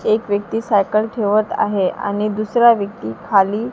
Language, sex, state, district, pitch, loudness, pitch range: Marathi, female, Maharashtra, Gondia, 210 Hz, -17 LUFS, 200-215 Hz